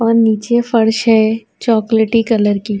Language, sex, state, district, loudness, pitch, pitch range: Urdu, female, Uttar Pradesh, Budaun, -14 LUFS, 225 Hz, 220-230 Hz